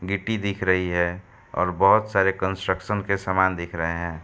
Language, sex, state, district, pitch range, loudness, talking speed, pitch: Hindi, male, Uttar Pradesh, Hamirpur, 90-100 Hz, -23 LUFS, 185 wpm, 95 Hz